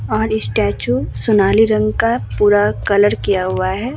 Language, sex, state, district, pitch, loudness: Hindi, female, Bihar, Vaishali, 190 Hz, -15 LUFS